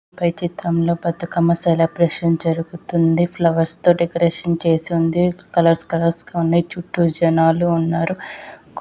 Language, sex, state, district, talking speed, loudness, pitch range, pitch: Telugu, female, Andhra Pradesh, Visakhapatnam, 130 wpm, -18 LUFS, 165-170 Hz, 170 Hz